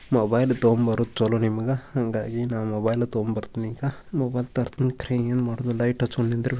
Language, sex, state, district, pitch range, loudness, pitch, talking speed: Kannada, male, Karnataka, Bijapur, 115-125 Hz, -25 LUFS, 120 Hz, 90 wpm